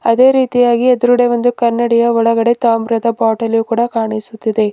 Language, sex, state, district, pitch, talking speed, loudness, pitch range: Kannada, female, Karnataka, Bidar, 235 Hz, 125 wpm, -13 LUFS, 225-240 Hz